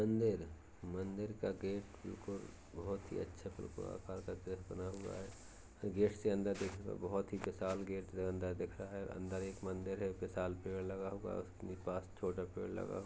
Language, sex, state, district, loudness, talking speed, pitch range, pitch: Hindi, male, Uttar Pradesh, Jalaun, -43 LUFS, 195 wpm, 90-100 Hz, 95 Hz